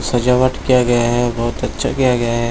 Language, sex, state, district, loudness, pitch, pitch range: Hindi, male, Bihar, Jamui, -16 LUFS, 120 Hz, 120-125 Hz